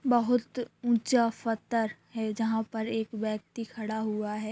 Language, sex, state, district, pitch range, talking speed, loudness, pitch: Hindi, female, Bihar, Saran, 220-235 Hz, 145 wpm, -30 LUFS, 225 Hz